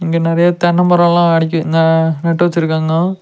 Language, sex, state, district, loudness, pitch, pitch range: Tamil, male, Tamil Nadu, Nilgiris, -13 LUFS, 170 Hz, 160-175 Hz